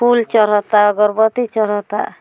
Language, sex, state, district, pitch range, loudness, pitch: Bhojpuri, female, Bihar, Muzaffarpur, 210-230 Hz, -15 LUFS, 215 Hz